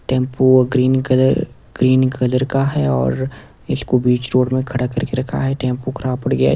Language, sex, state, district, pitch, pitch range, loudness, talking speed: Hindi, male, Odisha, Nuapada, 130 Hz, 125-130 Hz, -17 LUFS, 190 wpm